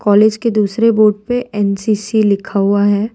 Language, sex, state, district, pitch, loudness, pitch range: Hindi, female, Gujarat, Valsad, 210 Hz, -14 LUFS, 205-225 Hz